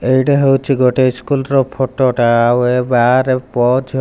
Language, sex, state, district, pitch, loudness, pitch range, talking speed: Odia, male, Odisha, Malkangiri, 130 Hz, -13 LUFS, 125-135 Hz, 195 wpm